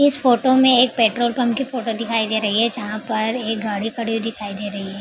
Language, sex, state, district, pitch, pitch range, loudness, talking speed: Hindi, female, Bihar, Begusarai, 225 Hz, 215-245 Hz, -19 LUFS, 275 wpm